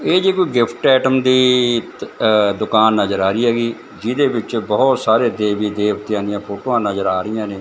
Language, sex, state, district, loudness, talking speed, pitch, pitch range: Punjabi, male, Punjab, Fazilka, -16 LUFS, 190 wpm, 110 Hz, 105-125 Hz